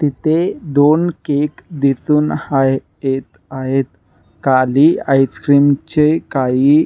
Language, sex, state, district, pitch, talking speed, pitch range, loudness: Marathi, male, Maharashtra, Nagpur, 140 Hz, 85 wpm, 135-150 Hz, -15 LUFS